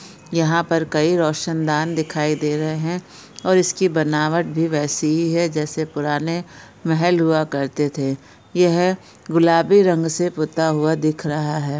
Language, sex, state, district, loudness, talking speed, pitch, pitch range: Hindi, female, Bihar, Darbhanga, -19 LUFS, 150 wpm, 160 Hz, 150-170 Hz